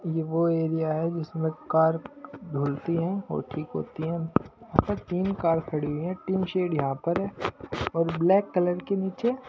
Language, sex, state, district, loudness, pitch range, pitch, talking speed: Hindi, male, Punjab, Pathankot, -27 LUFS, 160-185 Hz, 165 Hz, 175 wpm